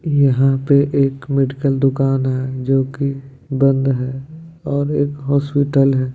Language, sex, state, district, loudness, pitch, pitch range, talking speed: Hindi, male, Bihar, Begusarai, -17 LUFS, 135 Hz, 135-140 Hz, 135 wpm